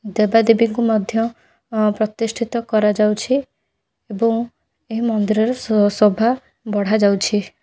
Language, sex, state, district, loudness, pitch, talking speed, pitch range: Odia, female, Odisha, Khordha, -18 LUFS, 220 Hz, 95 wpm, 210-230 Hz